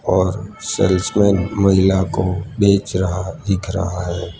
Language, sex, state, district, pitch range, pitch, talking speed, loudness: Hindi, male, Gujarat, Gandhinagar, 90-100 Hz, 95 Hz, 120 wpm, -18 LUFS